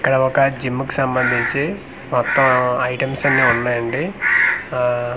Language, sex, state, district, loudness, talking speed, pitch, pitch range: Telugu, male, Andhra Pradesh, Manyam, -17 LUFS, 125 wpm, 130 Hz, 125-135 Hz